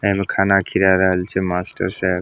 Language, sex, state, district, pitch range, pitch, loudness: Maithili, male, Bihar, Samastipur, 90-95 Hz, 95 Hz, -18 LUFS